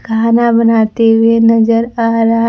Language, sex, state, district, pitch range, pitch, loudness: Hindi, female, Bihar, Kaimur, 225-230 Hz, 230 Hz, -10 LUFS